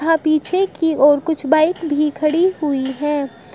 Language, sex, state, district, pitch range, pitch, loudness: Hindi, female, Uttar Pradesh, Shamli, 290-325 Hz, 310 Hz, -17 LUFS